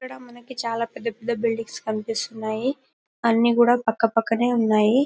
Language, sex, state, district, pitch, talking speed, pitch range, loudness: Telugu, female, Telangana, Karimnagar, 230 Hz, 130 wpm, 225-240 Hz, -23 LUFS